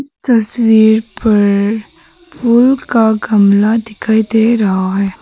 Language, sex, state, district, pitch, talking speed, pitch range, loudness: Hindi, female, Arunachal Pradesh, Papum Pare, 220 Hz, 105 wpm, 210-235 Hz, -12 LUFS